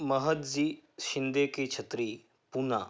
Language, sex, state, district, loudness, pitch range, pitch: Hindi, male, Uttar Pradesh, Hamirpur, -32 LUFS, 135-150 Hz, 140 Hz